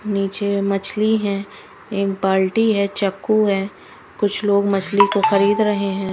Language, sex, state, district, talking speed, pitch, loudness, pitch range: Hindi, female, Haryana, Charkhi Dadri, 145 wpm, 200 Hz, -19 LUFS, 195-210 Hz